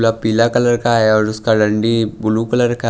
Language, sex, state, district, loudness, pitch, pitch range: Hindi, male, Maharashtra, Washim, -15 LUFS, 115 Hz, 110-120 Hz